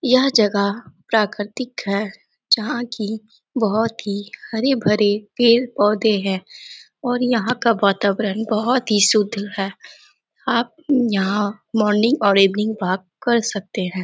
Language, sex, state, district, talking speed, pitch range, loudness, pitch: Hindi, female, Bihar, Jamui, 120 wpm, 200-240 Hz, -19 LUFS, 215 Hz